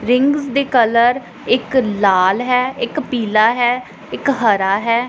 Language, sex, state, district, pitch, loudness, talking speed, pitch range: Punjabi, female, Punjab, Pathankot, 240 Hz, -16 LUFS, 140 wpm, 215-255 Hz